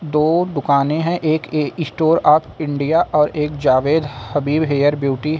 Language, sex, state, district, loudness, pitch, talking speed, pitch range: Hindi, male, Uttar Pradesh, Lucknow, -17 LUFS, 150 Hz, 165 wpm, 145-160 Hz